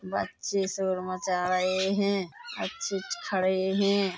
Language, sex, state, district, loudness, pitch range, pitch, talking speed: Hindi, female, Chhattisgarh, Bilaspur, -29 LUFS, 185-200 Hz, 190 Hz, 100 wpm